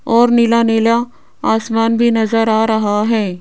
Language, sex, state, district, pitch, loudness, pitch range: Hindi, female, Rajasthan, Jaipur, 225 Hz, -14 LUFS, 220-235 Hz